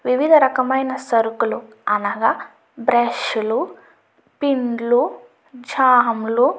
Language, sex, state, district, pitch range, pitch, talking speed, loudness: Telugu, female, Andhra Pradesh, Chittoor, 235-265 Hz, 250 Hz, 100 wpm, -18 LUFS